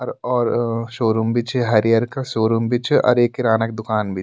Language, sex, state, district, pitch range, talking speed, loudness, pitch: Garhwali, male, Uttarakhand, Tehri Garhwal, 110-120 Hz, 225 wpm, -19 LUFS, 115 Hz